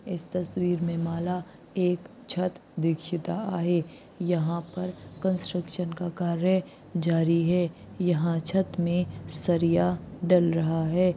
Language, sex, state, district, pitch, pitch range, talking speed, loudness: Hindi, female, Maharashtra, Aurangabad, 175 Hz, 170-180 Hz, 125 wpm, -28 LUFS